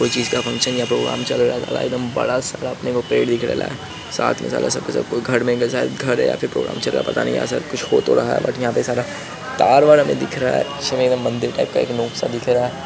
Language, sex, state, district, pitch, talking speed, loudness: Hindi, male, Bihar, Araria, 120 Hz, 310 wpm, -19 LUFS